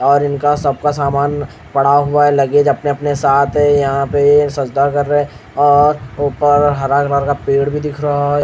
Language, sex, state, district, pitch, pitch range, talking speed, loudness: Hindi, male, Haryana, Rohtak, 145 Hz, 140-145 Hz, 190 wpm, -14 LUFS